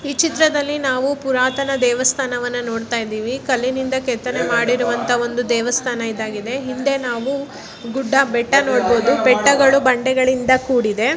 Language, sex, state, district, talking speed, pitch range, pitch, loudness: Kannada, female, Karnataka, Bellary, 95 wpm, 240-270 Hz, 255 Hz, -18 LUFS